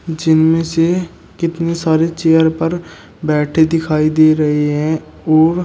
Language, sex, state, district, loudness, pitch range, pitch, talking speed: Hindi, male, Uttar Pradesh, Shamli, -14 LUFS, 155-165 Hz, 160 Hz, 125 wpm